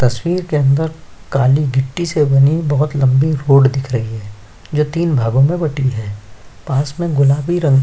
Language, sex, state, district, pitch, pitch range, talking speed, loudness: Hindi, male, Chhattisgarh, Sukma, 140 Hz, 130-150 Hz, 185 wpm, -15 LUFS